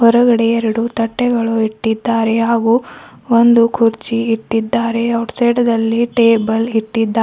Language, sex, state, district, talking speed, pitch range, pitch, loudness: Kannada, female, Karnataka, Bidar, 110 wpm, 225-235 Hz, 230 Hz, -14 LUFS